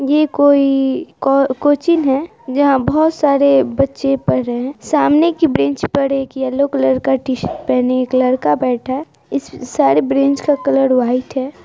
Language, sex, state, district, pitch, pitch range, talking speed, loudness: Hindi, female, Bihar, Araria, 275 Hz, 260-285 Hz, 170 wpm, -15 LUFS